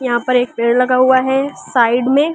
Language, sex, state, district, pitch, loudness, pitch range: Hindi, female, Delhi, New Delhi, 255 Hz, -14 LUFS, 240-265 Hz